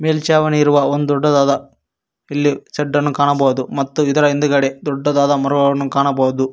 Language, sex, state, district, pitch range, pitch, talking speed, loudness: Kannada, male, Karnataka, Koppal, 140-145 Hz, 145 Hz, 120 wpm, -16 LUFS